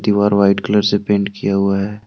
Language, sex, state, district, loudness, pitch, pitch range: Hindi, male, Jharkhand, Deoghar, -16 LUFS, 100 Hz, 100-105 Hz